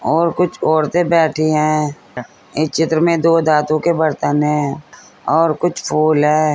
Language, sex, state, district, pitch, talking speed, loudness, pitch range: Hindi, female, Uttar Pradesh, Saharanpur, 155 Hz, 165 wpm, -16 LUFS, 150-165 Hz